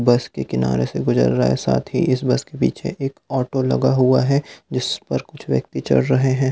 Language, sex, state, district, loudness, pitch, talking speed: Hindi, male, Delhi, New Delhi, -20 LUFS, 130 Hz, 230 wpm